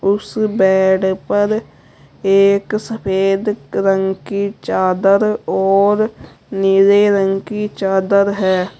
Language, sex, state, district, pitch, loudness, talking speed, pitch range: Hindi, female, Uttar Pradesh, Saharanpur, 195 Hz, -15 LUFS, 95 wpm, 190-205 Hz